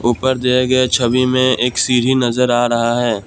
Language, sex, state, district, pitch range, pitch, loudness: Hindi, male, Assam, Kamrup Metropolitan, 120-130 Hz, 125 Hz, -15 LUFS